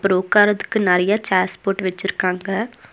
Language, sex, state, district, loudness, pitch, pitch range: Tamil, female, Tamil Nadu, Nilgiris, -19 LUFS, 195 Hz, 185-210 Hz